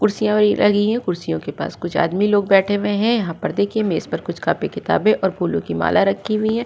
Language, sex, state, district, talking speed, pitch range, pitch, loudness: Hindi, female, Uttar Pradesh, Budaun, 245 wpm, 170-210 Hz, 205 Hz, -19 LUFS